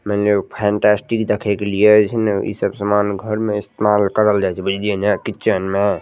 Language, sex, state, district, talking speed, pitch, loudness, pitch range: Maithili, male, Bihar, Madhepura, 220 wpm, 105 Hz, -17 LUFS, 100-105 Hz